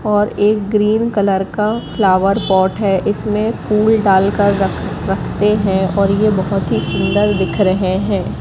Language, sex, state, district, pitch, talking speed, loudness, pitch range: Hindi, female, Madhya Pradesh, Katni, 200 Hz, 155 wpm, -15 LUFS, 190-210 Hz